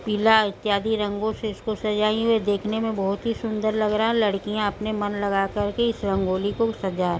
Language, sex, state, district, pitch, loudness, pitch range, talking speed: Hindi, female, Uttar Pradesh, Budaun, 210 Hz, -24 LUFS, 200-220 Hz, 200 wpm